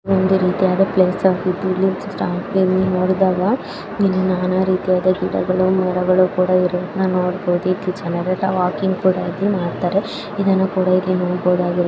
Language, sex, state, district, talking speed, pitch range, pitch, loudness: Kannada, female, Karnataka, Dharwad, 115 wpm, 180-190 Hz, 185 Hz, -18 LUFS